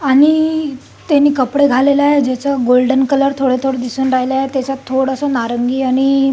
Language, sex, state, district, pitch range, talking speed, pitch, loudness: Marathi, female, Maharashtra, Solapur, 260-280 Hz, 140 wpm, 270 Hz, -14 LUFS